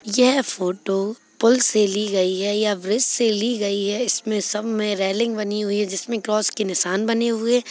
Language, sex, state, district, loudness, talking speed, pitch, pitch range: Hindi, female, Chhattisgarh, Kabirdham, -21 LUFS, 210 wpm, 210 Hz, 200-230 Hz